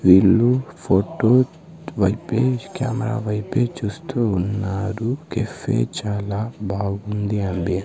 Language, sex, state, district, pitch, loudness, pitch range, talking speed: Telugu, male, Andhra Pradesh, Sri Satya Sai, 105 Hz, -21 LUFS, 100-125 Hz, 85 wpm